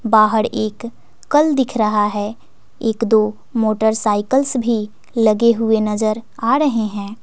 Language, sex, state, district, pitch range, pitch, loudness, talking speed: Hindi, female, Bihar, West Champaran, 215-235 Hz, 220 Hz, -17 LUFS, 135 wpm